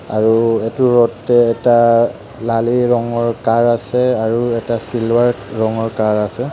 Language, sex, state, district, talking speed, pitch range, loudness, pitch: Assamese, male, Assam, Kamrup Metropolitan, 130 wpm, 115-120 Hz, -15 LUFS, 115 Hz